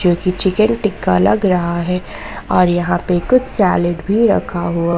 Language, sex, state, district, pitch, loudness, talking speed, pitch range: Hindi, female, Jharkhand, Ranchi, 180 Hz, -15 LUFS, 170 wpm, 170-195 Hz